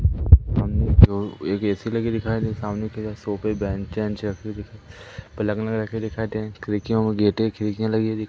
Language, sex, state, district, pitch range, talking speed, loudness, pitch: Hindi, male, Madhya Pradesh, Umaria, 100-110 Hz, 190 wpm, -23 LUFS, 105 Hz